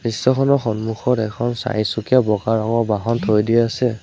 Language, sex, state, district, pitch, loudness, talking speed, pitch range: Assamese, male, Assam, Sonitpur, 115 Hz, -19 LUFS, 150 wpm, 110-125 Hz